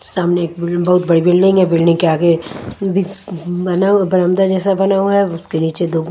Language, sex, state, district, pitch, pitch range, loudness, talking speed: Hindi, female, Odisha, Nuapada, 180 Hz, 170-195 Hz, -14 LUFS, 205 wpm